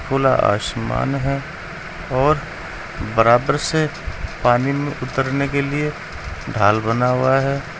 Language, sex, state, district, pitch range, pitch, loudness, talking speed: Hindi, male, Uttar Pradesh, Saharanpur, 120-140 Hz, 135 Hz, -19 LUFS, 115 wpm